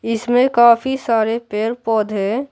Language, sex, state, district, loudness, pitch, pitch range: Hindi, male, Bihar, Patna, -16 LUFS, 230 Hz, 220-245 Hz